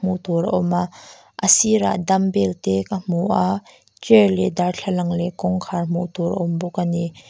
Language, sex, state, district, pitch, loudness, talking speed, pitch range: Mizo, female, Mizoram, Aizawl, 180 Hz, -20 LUFS, 190 wpm, 170-190 Hz